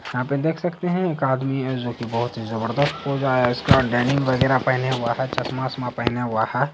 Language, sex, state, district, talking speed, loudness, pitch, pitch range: Hindi, male, Bihar, Saharsa, 230 wpm, -22 LUFS, 130 Hz, 120-140 Hz